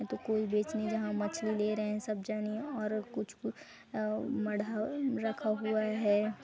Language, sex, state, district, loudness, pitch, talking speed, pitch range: Hindi, female, Chhattisgarh, Kabirdham, -34 LUFS, 215 Hz, 175 wpm, 210-220 Hz